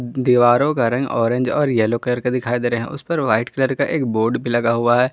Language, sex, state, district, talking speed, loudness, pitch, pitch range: Hindi, male, Jharkhand, Ranchi, 245 wpm, -18 LUFS, 120 Hz, 120-130 Hz